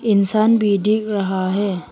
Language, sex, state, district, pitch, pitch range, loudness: Hindi, female, Arunachal Pradesh, Papum Pare, 205 Hz, 195-215 Hz, -17 LUFS